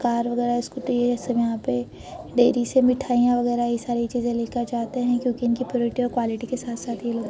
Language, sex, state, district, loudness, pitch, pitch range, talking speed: Hindi, female, Uttar Pradesh, Etah, -23 LUFS, 240 Hz, 235-245 Hz, 230 wpm